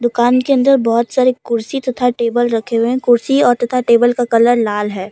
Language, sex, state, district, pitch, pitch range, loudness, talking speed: Hindi, female, Jharkhand, Deoghar, 240 Hz, 230-255 Hz, -14 LUFS, 210 wpm